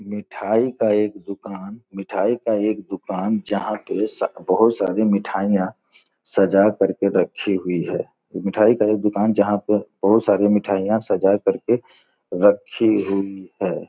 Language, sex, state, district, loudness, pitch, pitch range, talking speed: Hindi, male, Bihar, Gopalganj, -20 LUFS, 105 Hz, 100-110 Hz, 150 wpm